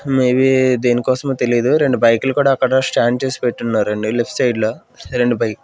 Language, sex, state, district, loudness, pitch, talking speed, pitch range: Telugu, male, Andhra Pradesh, Manyam, -16 LUFS, 125 Hz, 180 wpm, 120-130 Hz